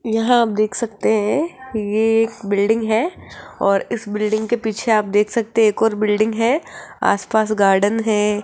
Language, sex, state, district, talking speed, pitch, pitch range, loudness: Hindi, female, Rajasthan, Jaipur, 175 wpm, 220 Hz, 210-225 Hz, -18 LUFS